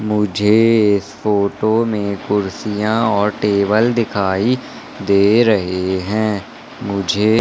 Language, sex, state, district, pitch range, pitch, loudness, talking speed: Hindi, male, Madhya Pradesh, Katni, 100-110 Hz, 105 Hz, -16 LUFS, 95 wpm